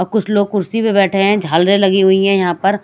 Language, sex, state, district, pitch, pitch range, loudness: Hindi, female, Odisha, Malkangiri, 195 Hz, 190-205 Hz, -13 LUFS